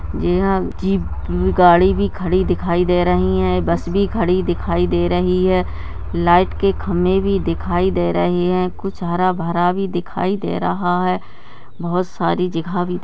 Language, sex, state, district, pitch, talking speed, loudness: Hindi, male, Rajasthan, Nagaur, 175 Hz, 165 wpm, -18 LUFS